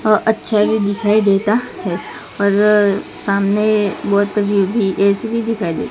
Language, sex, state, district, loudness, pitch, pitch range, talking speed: Hindi, female, Gujarat, Gandhinagar, -16 LUFS, 205 Hz, 200-215 Hz, 140 wpm